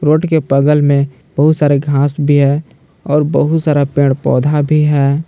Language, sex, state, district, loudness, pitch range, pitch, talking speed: Hindi, male, Jharkhand, Palamu, -13 LUFS, 140-150 Hz, 145 Hz, 180 wpm